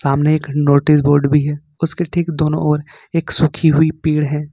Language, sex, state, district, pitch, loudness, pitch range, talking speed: Hindi, male, Jharkhand, Ranchi, 150 Hz, -16 LUFS, 150-155 Hz, 185 wpm